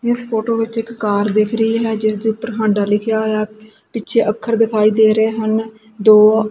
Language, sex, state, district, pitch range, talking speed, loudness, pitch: Punjabi, female, Punjab, Kapurthala, 215-225 Hz, 195 wpm, -16 LUFS, 220 Hz